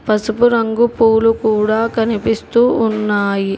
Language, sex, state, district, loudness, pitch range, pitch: Telugu, female, Telangana, Hyderabad, -15 LUFS, 215-230 Hz, 225 Hz